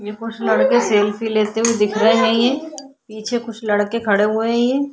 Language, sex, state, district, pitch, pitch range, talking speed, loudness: Hindi, female, Bihar, Vaishali, 225 Hz, 215-240 Hz, 205 wpm, -17 LUFS